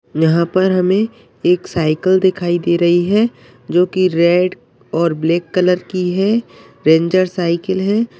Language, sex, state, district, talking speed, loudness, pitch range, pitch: Hindi, male, Uttar Pradesh, Deoria, 140 wpm, -15 LUFS, 170-190 Hz, 180 Hz